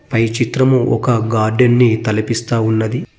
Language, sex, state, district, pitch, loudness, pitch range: Telugu, male, Telangana, Mahabubabad, 115 Hz, -15 LUFS, 110-125 Hz